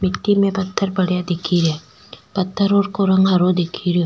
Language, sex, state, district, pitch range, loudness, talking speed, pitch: Rajasthani, female, Rajasthan, Nagaur, 175-200 Hz, -18 LUFS, 175 wpm, 185 Hz